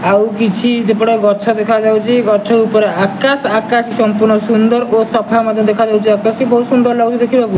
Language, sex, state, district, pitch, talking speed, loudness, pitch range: Odia, male, Odisha, Nuapada, 225 Hz, 165 wpm, -12 LUFS, 215-235 Hz